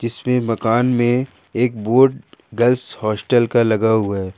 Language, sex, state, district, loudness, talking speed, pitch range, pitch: Hindi, male, Jharkhand, Ranchi, -17 LUFS, 150 wpm, 110-125 Hz, 120 Hz